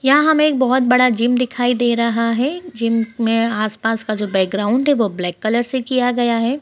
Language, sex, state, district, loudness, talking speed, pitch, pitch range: Hindi, female, Bihar, Bhagalpur, -17 LUFS, 215 wpm, 240 Hz, 225-255 Hz